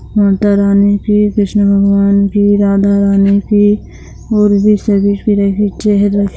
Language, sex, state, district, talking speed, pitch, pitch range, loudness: Hindi, female, Bihar, Lakhisarai, 105 wpm, 205 Hz, 200-205 Hz, -11 LUFS